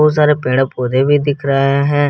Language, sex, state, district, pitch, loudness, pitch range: Hindi, male, Jharkhand, Garhwa, 140 Hz, -14 LUFS, 135-145 Hz